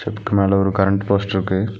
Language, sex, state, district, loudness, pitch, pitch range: Tamil, male, Tamil Nadu, Nilgiris, -18 LUFS, 100 Hz, 95-100 Hz